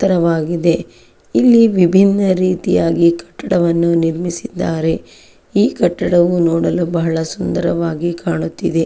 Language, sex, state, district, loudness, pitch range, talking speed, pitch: Kannada, female, Karnataka, Chamarajanagar, -15 LUFS, 165-180 Hz, 80 wpm, 170 Hz